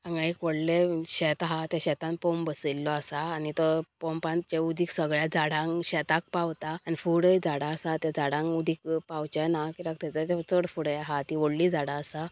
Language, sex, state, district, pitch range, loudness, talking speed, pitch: Konkani, female, Goa, North and South Goa, 155-170 Hz, -29 LUFS, 175 wpm, 160 Hz